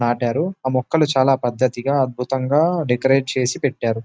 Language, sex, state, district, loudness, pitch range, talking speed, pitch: Telugu, male, Telangana, Nalgonda, -19 LUFS, 125-140 Hz, 135 wpm, 130 Hz